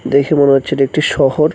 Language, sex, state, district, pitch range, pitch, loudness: Bengali, male, West Bengal, Cooch Behar, 135-150 Hz, 140 Hz, -13 LUFS